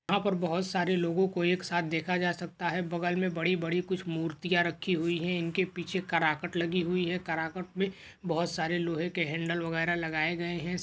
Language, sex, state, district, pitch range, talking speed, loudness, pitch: Hindi, male, Maharashtra, Dhule, 170-180 Hz, 205 wpm, -31 LUFS, 175 Hz